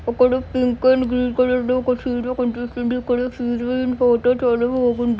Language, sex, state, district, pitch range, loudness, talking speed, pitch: Telugu, male, Telangana, Nalgonda, 240-255 Hz, -19 LUFS, 160 wpm, 250 Hz